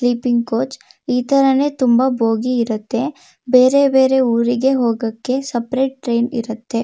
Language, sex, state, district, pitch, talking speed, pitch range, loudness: Kannada, female, Karnataka, Shimoga, 250 Hz, 115 wpm, 235-265 Hz, -17 LUFS